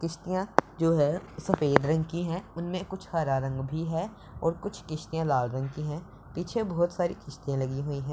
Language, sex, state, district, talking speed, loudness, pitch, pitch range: Hindi, male, Punjab, Pathankot, 200 wpm, -30 LUFS, 165 Hz, 145-175 Hz